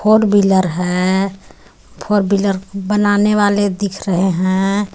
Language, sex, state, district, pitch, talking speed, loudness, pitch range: Hindi, female, Jharkhand, Garhwa, 200 Hz, 120 wpm, -15 LUFS, 190-205 Hz